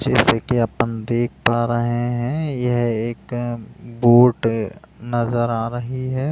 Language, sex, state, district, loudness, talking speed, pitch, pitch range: Hindi, male, Bihar, Jamui, -20 LUFS, 135 wpm, 120 Hz, 115-120 Hz